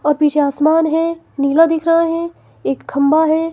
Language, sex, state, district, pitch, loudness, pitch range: Hindi, female, Himachal Pradesh, Shimla, 315 Hz, -15 LUFS, 290-330 Hz